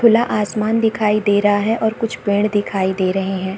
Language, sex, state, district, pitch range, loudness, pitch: Hindi, female, Bihar, Saharsa, 200-220 Hz, -17 LUFS, 210 Hz